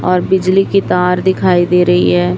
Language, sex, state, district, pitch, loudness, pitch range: Hindi, female, Chhattisgarh, Raipur, 180 Hz, -12 LUFS, 175-190 Hz